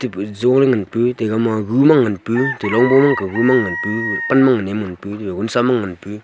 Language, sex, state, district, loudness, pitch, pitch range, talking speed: Wancho, male, Arunachal Pradesh, Longding, -16 LUFS, 115 Hz, 105-125 Hz, 210 wpm